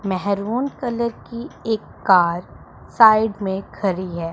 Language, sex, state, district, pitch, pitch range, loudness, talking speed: Hindi, female, Punjab, Pathankot, 205 Hz, 185-235 Hz, -20 LUFS, 125 wpm